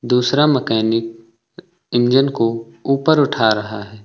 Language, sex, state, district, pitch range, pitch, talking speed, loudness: Hindi, male, Uttar Pradesh, Lucknow, 115-135 Hz, 120 Hz, 120 wpm, -17 LUFS